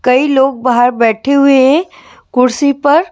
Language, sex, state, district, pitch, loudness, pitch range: Hindi, female, Bihar, West Champaran, 275 Hz, -11 LUFS, 250-290 Hz